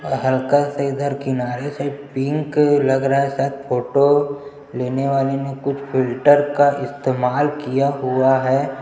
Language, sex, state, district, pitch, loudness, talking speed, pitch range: Hindi, male, Chhattisgarh, Jashpur, 140 Hz, -19 LUFS, 150 wpm, 135-145 Hz